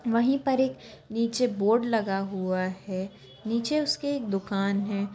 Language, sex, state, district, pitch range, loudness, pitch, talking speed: Kumaoni, female, Uttarakhand, Tehri Garhwal, 195-250 Hz, -27 LUFS, 220 Hz, 150 wpm